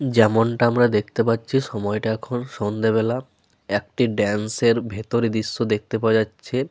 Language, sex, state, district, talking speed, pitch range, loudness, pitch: Bengali, male, Jharkhand, Sahebganj, 135 wpm, 105-120 Hz, -22 LUFS, 115 Hz